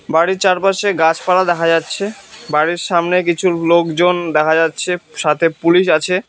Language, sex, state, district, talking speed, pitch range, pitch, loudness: Bengali, male, West Bengal, Cooch Behar, 135 wpm, 165-185 Hz, 175 Hz, -15 LUFS